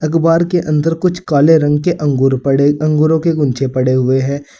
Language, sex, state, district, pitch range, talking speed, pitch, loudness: Hindi, male, Uttar Pradesh, Saharanpur, 135-165 Hz, 195 wpm, 150 Hz, -13 LUFS